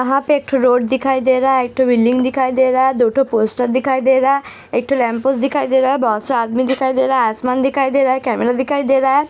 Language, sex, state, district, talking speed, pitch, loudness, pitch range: Hindi, female, Uttar Pradesh, Hamirpur, 305 wpm, 260 Hz, -15 LUFS, 250-270 Hz